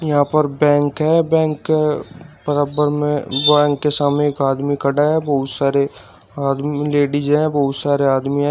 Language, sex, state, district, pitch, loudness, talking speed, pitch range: Hindi, male, Uttar Pradesh, Shamli, 145 Hz, -17 LUFS, 160 wpm, 140-150 Hz